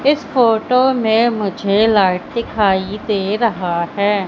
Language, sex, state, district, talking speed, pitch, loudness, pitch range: Hindi, female, Madhya Pradesh, Katni, 125 wpm, 215 Hz, -16 LUFS, 195-235 Hz